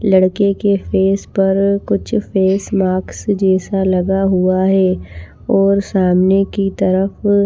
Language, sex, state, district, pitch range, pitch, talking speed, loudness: Hindi, female, Maharashtra, Washim, 185-200 Hz, 195 Hz, 130 wpm, -15 LUFS